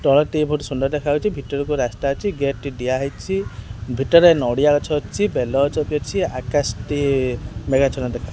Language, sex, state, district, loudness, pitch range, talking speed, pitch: Odia, male, Odisha, Khordha, -20 LUFS, 125-150 Hz, 175 wpm, 140 Hz